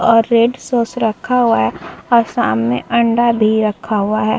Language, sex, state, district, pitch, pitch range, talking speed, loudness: Hindi, female, Bihar, Vaishali, 230 Hz, 215-235 Hz, 175 wpm, -15 LUFS